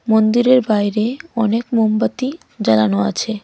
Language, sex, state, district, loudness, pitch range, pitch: Bengali, female, West Bengal, Cooch Behar, -17 LUFS, 215-245 Hz, 220 Hz